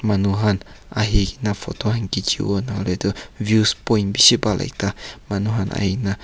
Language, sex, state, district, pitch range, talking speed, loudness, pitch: Nagamese, male, Nagaland, Kohima, 100-110 Hz, 200 wpm, -20 LUFS, 100 Hz